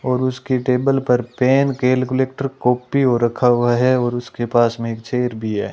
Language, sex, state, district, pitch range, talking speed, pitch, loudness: Hindi, male, Rajasthan, Bikaner, 120-130 Hz, 200 wpm, 125 Hz, -18 LUFS